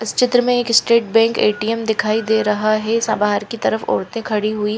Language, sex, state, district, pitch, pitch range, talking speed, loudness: Hindi, female, Punjab, Fazilka, 220 Hz, 210-230 Hz, 240 wpm, -17 LUFS